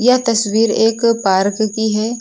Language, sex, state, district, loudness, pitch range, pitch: Hindi, female, Uttar Pradesh, Lucknow, -15 LUFS, 215-230 Hz, 225 Hz